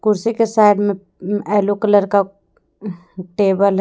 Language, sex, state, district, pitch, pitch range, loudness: Hindi, female, Jharkhand, Deoghar, 205 Hz, 195-210 Hz, -16 LUFS